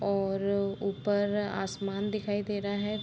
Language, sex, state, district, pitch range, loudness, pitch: Hindi, female, Bihar, Muzaffarpur, 200-205 Hz, -31 LUFS, 200 Hz